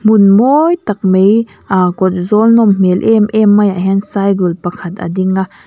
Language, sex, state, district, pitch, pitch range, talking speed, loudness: Mizo, female, Mizoram, Aizawl, 200 Hz, 185-215 Hz, 180 wpm, -11 LUFS